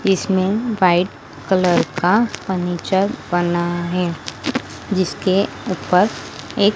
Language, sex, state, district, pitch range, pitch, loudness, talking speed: Hindi, female, Madhya Pradesh, Dhar, 175-195 Hz, 185 Hz, -19 LUFS, 90 wpm